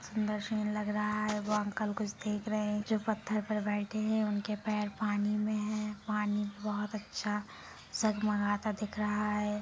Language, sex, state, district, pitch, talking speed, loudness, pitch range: Hindi, female, Jharkhand, Sahebganj, 210 Hz, 170 wpm, -34 LUFS, 210-215 Hz